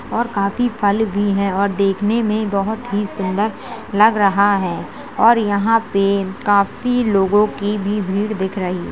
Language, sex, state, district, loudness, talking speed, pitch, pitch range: Hindi, female, Uttar Pradesh, Jalaun, -17 LUFS, 160 wpm, 205 Hz, 200-215 Hz